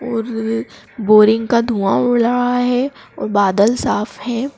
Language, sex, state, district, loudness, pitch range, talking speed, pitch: Hindi, female, Madhya Pradesh, Dhar, -16 LUFS, 215-245 Hz, 145 wpm, 235 Hz